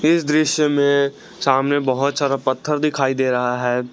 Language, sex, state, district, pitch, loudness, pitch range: Hindi, male, Jharkhand, Garhwa, 140 Hz, -19 LUFS, 130-150 Hz